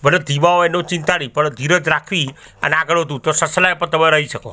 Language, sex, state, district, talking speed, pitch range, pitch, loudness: Gujarati, male, Gujarat, Gandhinagar, 250 wpm, 150-175 Hz, 160 Hz, -16 LUFS